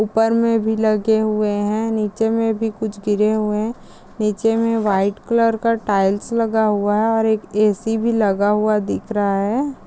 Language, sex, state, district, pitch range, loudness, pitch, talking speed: Hindi, female, Maharashtra, Sindhudurg, 210-225 Hz, -18 LUFS, 220 Hz, 180 wpm